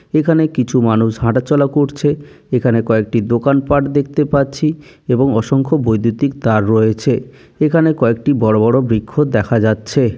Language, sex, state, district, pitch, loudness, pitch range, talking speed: Bengali, male, West Bengal, Jalpaiguri, 130 Hz, -15 LUFS, 115-145 Hz, 135 wpm